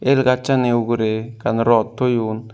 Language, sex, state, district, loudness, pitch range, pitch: Chakma, male, Tripura, Unakoti, -18 LUFS, 115-125 Hz, 115 Hz